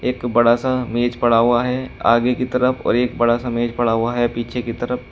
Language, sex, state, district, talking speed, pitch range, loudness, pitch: Hindi, male, Uttar Pradesh, Shamli, 245 wpm, 120-125 Hz, -18 LUFS, 120 Hz